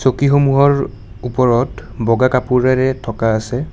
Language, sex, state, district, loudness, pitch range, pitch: Assamese, male, Assam, Kamrup Metropolitan, -15 LUFS, 115-130 Hz, 125 Hz